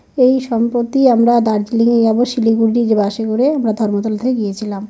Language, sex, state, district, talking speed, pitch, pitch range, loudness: Bengali, male, West Bengal, North 24 Parganas, 185 wpm, 230 Hz, 215-240 Hz, -15 LUFS